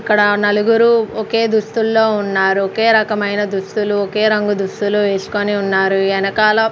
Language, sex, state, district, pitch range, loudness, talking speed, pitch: Telugu, female, Andhra Pradesh, Sri Satya Sai, 200-220 Hz, -15 LUFS, 135 wpm, 210 Hz